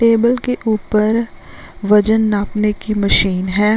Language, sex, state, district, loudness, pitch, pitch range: Hindi, female, Uttarakhand, Uttarkashi, -15 LUFS, 210 Hz, 205-225 Hz